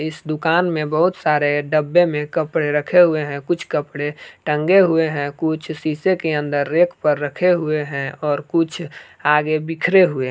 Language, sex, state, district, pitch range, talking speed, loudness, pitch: Hindi, male, Jharkhand, Palamu, 150-170 Hz, 180 wpm, -18 LUFS, 155 Hz